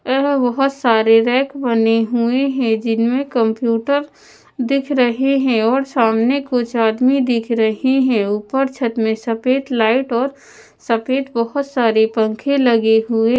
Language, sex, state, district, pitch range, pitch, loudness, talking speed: Hindi, female, Odisha, Nuapada, 225-270 Hz, 245 Hz, -16 LUFS, 145 wpm